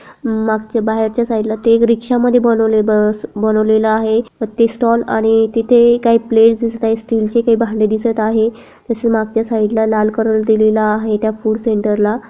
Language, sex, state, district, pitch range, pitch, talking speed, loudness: Marathi, female, Maharashtra, Chandrapur, 220-230 Hz, 225 Hz, 185 wpm, -14 LUFS